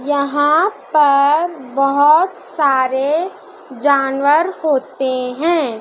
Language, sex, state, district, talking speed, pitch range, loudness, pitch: Hindi, male, Madhya Pradesh, Dhar, 70 wpm, 270-320 Hz, -15 LUFS, 285 Hz